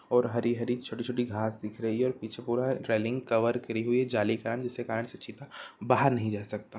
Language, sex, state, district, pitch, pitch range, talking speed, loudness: Hindi, male, Chhattisgarh, Bilaspur, 115 Hz, 110-125 Hz, 240 wpm, -30 LUFS